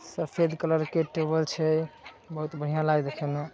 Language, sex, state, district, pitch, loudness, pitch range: Maithili, male, Bihar, Saharsa, 155 Hz, -28 LUFS, 155-160 Hz